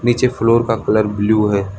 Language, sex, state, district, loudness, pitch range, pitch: Hindi, male, Arunachal Pradesh, Lower Dibang Valley, -16 LUFS, 105-115 Hz, 110 Hz